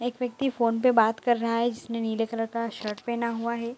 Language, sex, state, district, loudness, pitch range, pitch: Hindi, female, Bihar, Bhagalpur, -27 LUFS, 225-240 Hz, 230 Hz